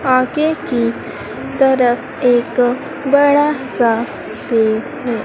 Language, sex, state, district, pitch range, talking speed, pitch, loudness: Hindi, female, Madhya Pradesh, Dhar, 240-280 Hz, 90 wpm, 255 Hz, -16 LUFS